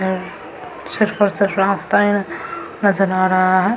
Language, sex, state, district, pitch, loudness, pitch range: Hindi, female, Bihar, Samastipur, 195 Hz, -17 LUFS, 185-205 Hz